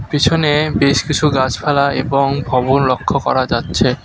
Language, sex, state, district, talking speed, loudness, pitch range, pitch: Bengali, male, West Bengal, Alipurduar, 135 wpm, -15 LUFS, 130-145 Hz, 140 Hz